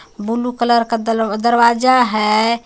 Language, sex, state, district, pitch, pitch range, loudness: Hindi, female, Jharkhand, Garhwa, 235 Hz, 225-235 Hz, -15 LUFS